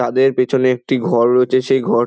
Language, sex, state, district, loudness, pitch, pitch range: Bengali, male, West Bengal, Dakshin Dinajpur, -15 LUFS, 130 Hz, 125-130 Hz